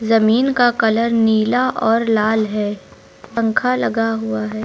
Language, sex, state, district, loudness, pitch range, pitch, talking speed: Hindi, male, Uttar Pradesh, Lucknow, -17 LUFS, 215-235 Hz, 225 Hz, 140 wpm